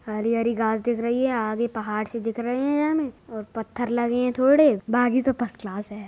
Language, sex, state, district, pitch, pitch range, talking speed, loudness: Hindi, female, Uttar Pradesh, Budaun, 235 Hz, 220-250 Hz, 215 wpm, -24 LUFS